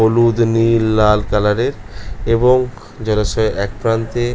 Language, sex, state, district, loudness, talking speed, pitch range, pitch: Bengali, male, West Bengal, North 24 Parganas, -15 LUFS, 110 wpm, 105-115 Hz, 110 Hz